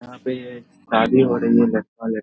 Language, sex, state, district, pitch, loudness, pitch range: Hindi, male, Bihar, Saharsa, 125 Hz, -19 LUFS, 115-130 Hz